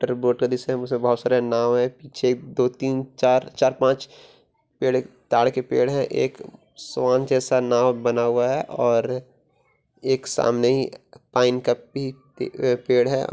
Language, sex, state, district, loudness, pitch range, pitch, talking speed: Hindi, male, Bihar, Purnia, -22 LUFS, 120-130 Hz, 125 Hz, 160 wpm